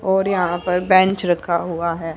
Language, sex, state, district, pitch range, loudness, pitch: Hindi, female, Haryana, Charkhi Dadri, 170-185 Hz, -18 LUFS, 175 Hz